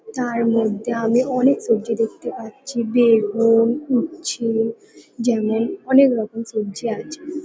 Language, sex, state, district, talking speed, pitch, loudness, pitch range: Bengali, female, West Bengal, Kolkata, 105 wpm, 230 Hz, -20 LUFS, 225-255 Hz